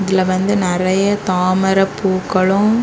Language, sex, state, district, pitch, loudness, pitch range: Tamil, female, Tamil Nadu, Kanyakumari, 190 Hz, -15 LUFS, 185-195 Hz